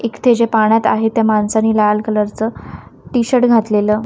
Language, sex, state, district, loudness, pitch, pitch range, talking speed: Marathi, female, Maharashtra, Washim, -14 LUFS, 220 Hz, 215-230 Hz, 190 wpm